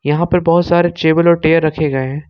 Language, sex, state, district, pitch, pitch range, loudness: Hindi, male, Jharkhand, Ranchi, 165 Hz, 155-175 Hz, -13 LUFS